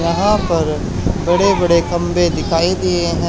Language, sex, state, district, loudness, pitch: Hindi, male, Haryana, Charkhi Dadri, -16 LUFS, 170 Hz